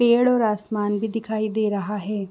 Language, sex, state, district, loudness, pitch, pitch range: Hindi, female, Chhattisgarh, Raigarh, -23 LUFS, 215 Hz, 210-225 Hz